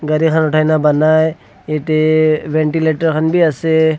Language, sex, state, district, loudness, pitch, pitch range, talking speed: Nagamese, male, Nagaland, Dimapur, -14 LUFS, 155 Hz, 155-160 Hz, 75 wpm